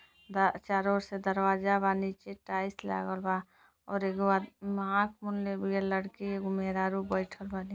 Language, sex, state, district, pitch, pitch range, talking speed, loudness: Bhojpuri, female, Uttar Pradesh, Gorakhpur, 195 Hz, 190-200 Hz, 145 wpm, -32 LUFS